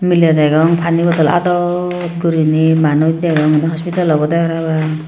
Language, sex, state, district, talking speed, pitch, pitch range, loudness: Chakma, female, Tripura, Unakoti, 130 wpm, 165 Hz, 155-170 Hz, -14 LUFS